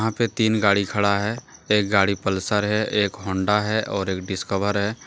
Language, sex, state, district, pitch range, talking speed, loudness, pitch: Hindi, male, Jharkhand, Deoghar, 100-105 Hz, 190 wpm, -22 LUFS, 100 Hz